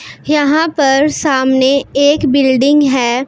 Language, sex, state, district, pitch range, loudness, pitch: Hindi, female, Punjab, Pathankot, 265-295 Hz, -12 LUFS, 275 Hz